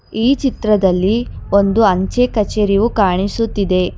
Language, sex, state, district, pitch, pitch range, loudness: Kannada, female, Karnataka, Bangalore, 210 Hz, 195-225 Hz, -15 LUFS